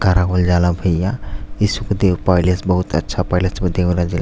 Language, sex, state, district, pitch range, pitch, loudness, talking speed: Bhojpuri, male, Uttar Pradesh, Deoria, 90-95 Hz, 90 Hz, -17 LUFS, 155 wpm